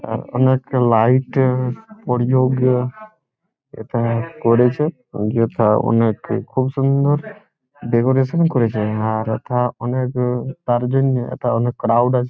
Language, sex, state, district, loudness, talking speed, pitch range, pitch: Bengali, male, West Bengal, Jhargram, -18 LUFS, 120 wpm, 115-130 Hz, 125 Hz